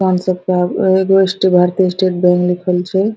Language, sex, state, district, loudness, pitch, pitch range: Hindi, female, Bihar, Araria, -14 LUFS, 185 Hz, 180-190 Hz